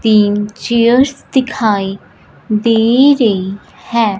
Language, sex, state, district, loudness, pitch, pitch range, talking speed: Hindi, female, Punjab, Fazilka, -13 LUFS, 225 Hz, 205-240 Hz, 85 wpm